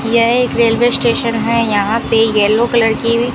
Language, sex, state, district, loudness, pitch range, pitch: Hindi, female, Rajasthan, Bikaner, -13 LUFS, 225-235 Hz, 230 Hz